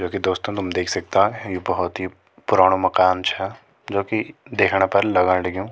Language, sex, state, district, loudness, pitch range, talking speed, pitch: Garhwali, male, Uttarakhand, Tehri Garhwal, -20 LUFS, 90-100 Hz, 180 wpm, 95 Hz